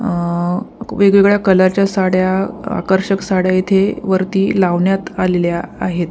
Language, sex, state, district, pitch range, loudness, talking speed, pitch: Marathi, female, Maharashtra, Pune, 180-195 Hz, -15 LUFS, 110 wpm, 190 Hz